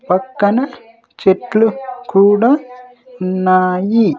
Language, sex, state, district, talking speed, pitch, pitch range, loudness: Telugu, male, Andhra Pradesh, Sri Satya Sai, 55 wpm, 225 Hz, 190-250 Hz, -14 LUFS